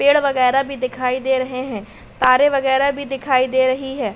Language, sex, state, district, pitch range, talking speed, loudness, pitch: Hindi, female, Uttar Pradesh, Hamirpur, 255-275 Hz, 200 wpm, -18 LUFS, 265 Hz